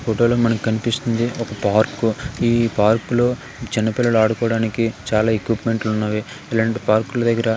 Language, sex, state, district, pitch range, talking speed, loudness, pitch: Telugu, male, Telangana, Karimnagar, 110-120 Hz, 125 wpm, -19 LUFS, 115 Hz